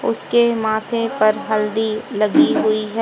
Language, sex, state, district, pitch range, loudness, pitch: Hindi, female, Haryana, Rohtak, 215-225 Hz, -17 LUFS, 220 Hz